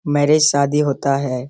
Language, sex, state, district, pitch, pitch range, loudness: Hindi, male, Bihar, Darbhanga, 140 Hz, 140-150 Hz, -16 LUFS